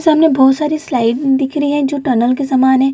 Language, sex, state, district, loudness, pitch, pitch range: Hindi, female, Bihar, Gaya, -13 LUFS, 270 Hz, 260-295 Hz